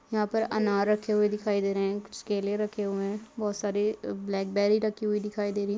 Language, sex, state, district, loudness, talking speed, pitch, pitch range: Hindi, female, Bihar, Madhepura, -29 LUFS, 250 wpm, 210 Hz, 200-210 Hz